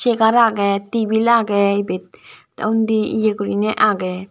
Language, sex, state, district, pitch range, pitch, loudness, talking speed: Chakma, female, Tripura, Dhalai, 200-225 Hz, 215 Hz, -17 LUFS, 140 wpm